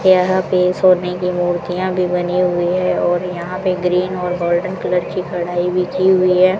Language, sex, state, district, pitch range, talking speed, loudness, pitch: Hindi, female, Rajasthan, Bikaner, 180-185 Hz, 200 wpm, -17 LUFS, 180 Hz